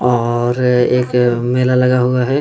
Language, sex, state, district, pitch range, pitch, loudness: Hindi, male, Bihar, Darbhanga, 120-125 Hz, 125 Hz, -14 LUFS